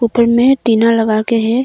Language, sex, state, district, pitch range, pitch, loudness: Hindi, female, Arunachal Pradesh, Longding, 225-235 Hz, 230 Hz, -12 LUFS